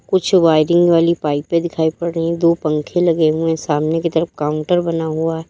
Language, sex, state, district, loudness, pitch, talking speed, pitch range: Hindi, female, Uttar Pradesh, Lalitpur, -16 LUFS, 165 Hz, 205 wpm, 155-170 Hz